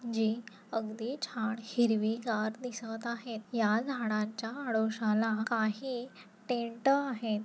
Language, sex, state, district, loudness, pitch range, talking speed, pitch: Marathi, female, Maharashtra, Nagpur, -33 LUFS, 220-240 Hz, 95 wpm, 225 Hz